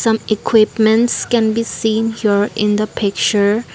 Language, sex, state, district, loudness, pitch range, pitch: English, female, Assam, Kamrup Metropolitan, -15 LUFS, 210-225 Hz, 220 Hz